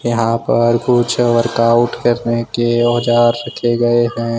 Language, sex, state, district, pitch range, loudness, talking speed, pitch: Hindi, male, Jharkhand, Ranchi, 115-120 Hz, -15 LUFS, 135 wpm, 120 Hz